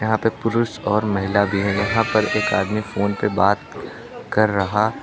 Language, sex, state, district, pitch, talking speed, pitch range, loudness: Hindi, male, Uttar Pradesh, Lucknow, 105 Hz, 205 wpm, 100-110 Hz, -20 LUFS